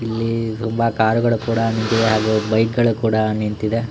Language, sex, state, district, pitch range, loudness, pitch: Kannada, male, Karnataka, Shimoga, 110-115 Hz, -18 LUFS, 115 Hz